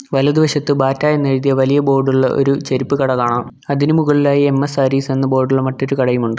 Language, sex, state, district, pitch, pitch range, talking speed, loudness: Malayalam, male, Kerala, Kollam, 135 Hz, 130-145 Hz, 170 wpm, -15 LUFS